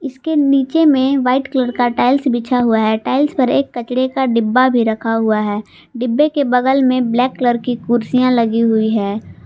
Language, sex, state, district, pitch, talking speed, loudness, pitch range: Hindi, female, Jharkhand, Palamu, 250 Hz, 195 wpm, -15 LUFS, 230-265 Hz